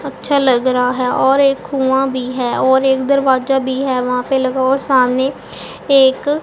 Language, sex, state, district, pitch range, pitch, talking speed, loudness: Hindi, female, Punjab, Pathankot, 255-275 Hz, 265 Hz, 185 wpm, -14 LUFS